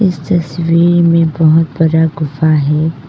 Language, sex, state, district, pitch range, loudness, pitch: Hindi, female, Arunachal Pradesh, Papum Pare, 155-170 Hz, -12 LUFS, 160 Hz